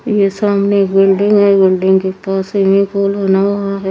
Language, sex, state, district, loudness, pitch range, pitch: Hindi, female, Haryana, Charkhi Dadri, -12 LUFS, 195-200 Hz, 195 Hz